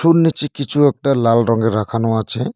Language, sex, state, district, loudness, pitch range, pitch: Bengali, male, West Bengal, Cooch Behar, -16 LUFS, 115-145 Hz, 130 Hz